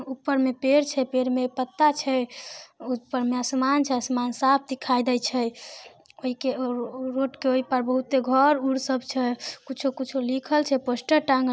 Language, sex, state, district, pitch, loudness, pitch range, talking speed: Maithili, female, Bihar, Samastipur, 260 Hz, -25 LUFS, 255-270 Hz, 180 wpm